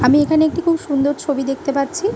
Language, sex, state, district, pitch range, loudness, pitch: Bengali, female, West Bengal, Malda, 275-325 Hz, -17 LUFS, 290 Hz